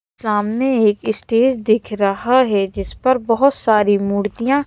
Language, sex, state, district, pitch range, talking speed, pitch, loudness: Hindi, female, Madhya Pradesh, Bhopal, 205-255 Hz, 140 wpm, 220 Hz, -17 LUFS